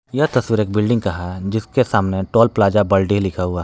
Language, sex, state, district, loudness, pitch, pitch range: Hindi, male, Jharkhand, Palamu, -18 LUFS, 105 Hz, 95-115 Hz